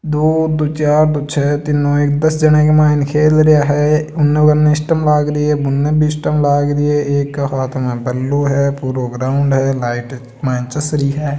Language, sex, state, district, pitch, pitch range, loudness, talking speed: Marwari, male, Rajasthan, Nagaur, 145 Hz, 140-150 Hz, -14 LUFS, 205 wpm